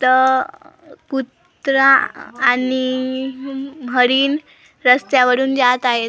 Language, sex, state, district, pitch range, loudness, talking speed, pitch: Marathi, female, Maharashtra, Gondia, 250-270 Hz, -16 LUFS, 60 wpm, 260 Hz